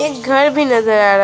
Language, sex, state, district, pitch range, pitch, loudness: Hindi, female, West Bengal, Alipurduar, 215-295 Hz, 265 Hz, -13 LUFS